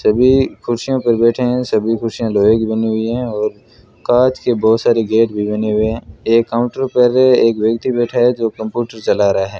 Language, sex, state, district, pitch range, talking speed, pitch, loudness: Hindi, male, Rajasthan, Bikaner, 110-120 Hz, 210 wpm, 115 Hz, -15 LUFS